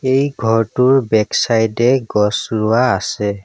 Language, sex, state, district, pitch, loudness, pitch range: Assamese, male, Assam, Sonitpur, 115 Hz, -15 LUFS, 110-130 Hz